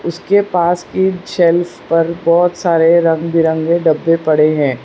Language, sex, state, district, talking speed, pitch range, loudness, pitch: Hindi, female, Gujarat, Valsad, 135 wpm, 160-175 Hz, -13 LUFS, 170 Hz